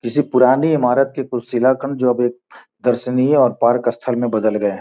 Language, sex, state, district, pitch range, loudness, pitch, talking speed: Hindi, male, Bihar, Gopalganj, 120-130 Hz, -17 LUFS, 125 Hz, 210 wpm